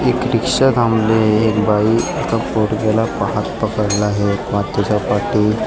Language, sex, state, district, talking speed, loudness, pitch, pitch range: Marathi, male, Maharashtra, Mumbai Suburban, 170 wpm, -16 LUFS, 110 Hz, 105-115 Hz